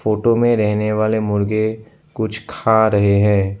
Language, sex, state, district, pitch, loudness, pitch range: Hindi, male, Assam, Sonitpur, 110 Hz, -17 LUFS, 105-110 Hz